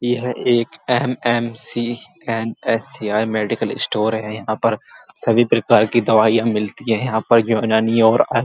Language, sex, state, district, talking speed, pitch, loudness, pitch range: Hindi, male, Uttar Pradesh, Muzaffarnagar, 150 wpm, 115 Hz, -18 LUFS, 110-120 Hz